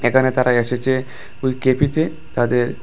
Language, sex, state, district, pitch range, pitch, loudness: Bengali, male, Tripura, West Tripura, 125-130 Hz, 130 Hz, -19 LUFS